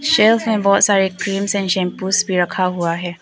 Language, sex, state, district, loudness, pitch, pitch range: Hindi, female, Arunachal Pradesh, Papum Pare, -16 LUFS, 195 Hz, 180-205 Hz